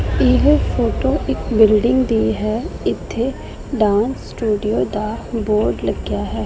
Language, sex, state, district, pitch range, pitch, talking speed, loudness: Punjabi, female, Punjab, Pathankot, 210-230 Hz, 215 Hz, 120 wpm, -18 LUFS